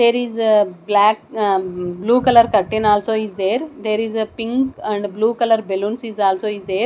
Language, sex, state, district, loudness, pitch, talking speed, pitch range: English, female, Odisha, Nuapada, -18 LUFS, 215 Hz, 190 wpm, 205-230 Hz